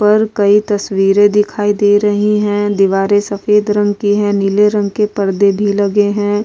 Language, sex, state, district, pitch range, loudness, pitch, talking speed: Hindi, female, Goa, North and South Goa, 200-210 Hz, -13 LUFS, 205 Hz, 185 wpm